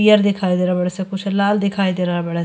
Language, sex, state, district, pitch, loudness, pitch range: Bhojpuri, female, Uttar Pradesh, Ghazipur, 190 Hz, -18 LUFS, 180-200 Hz